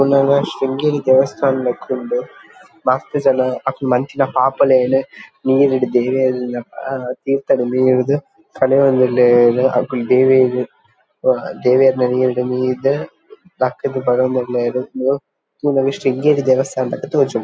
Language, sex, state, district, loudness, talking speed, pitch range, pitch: Tulu, male, Karnataka, Dakshina Kannada, -16 LUFS, 105 wpm, 125-135 Hz, 130 Hz